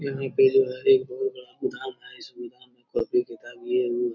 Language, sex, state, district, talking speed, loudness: Hindi, male, Bihar, Jamui, 215 wpm, -24 LUFS